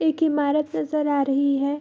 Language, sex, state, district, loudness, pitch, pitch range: Hindi, female, Bihar, Bhagalpur, -22 LUFS, 290 Hz, 280-305 Hz